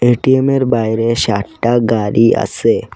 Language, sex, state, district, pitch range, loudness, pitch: Bengali, male, Assam, Kamrup Metropolitan, 115-120 Hz, -14 LUFS, 115 Hz